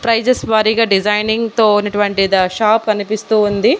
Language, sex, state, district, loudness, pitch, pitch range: Telugu, female, Andhra Pradesh, Annamaya, -14 LUFS, 215 Hz, 205-225 Hz